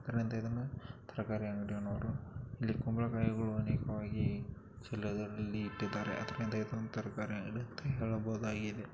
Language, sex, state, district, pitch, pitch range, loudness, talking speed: Kannada, male, Karnataka, Chamarajanagar, 110 Hz, 105-115 Hz, -39 LUFS, 105 wpm